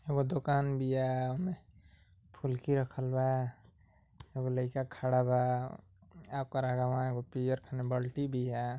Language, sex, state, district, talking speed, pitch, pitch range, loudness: Bhojpuri, male, Uttar Pradesh, Ghazipur, 115 wpm, 130 Hz, 125-135 Hz, -34 LUFS